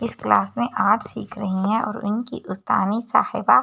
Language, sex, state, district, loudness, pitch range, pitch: Hindi, female, Delhi, New Delhi, -22 LUFS, 205-230 Hz, 215 Hz